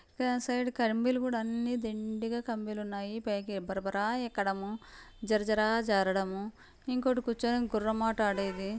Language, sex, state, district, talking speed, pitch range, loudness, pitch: Telugu, female, Andhra Pradesh, Anantapur, 90 wpm, 205-235 Hz, -32 LUFS, 220 Hz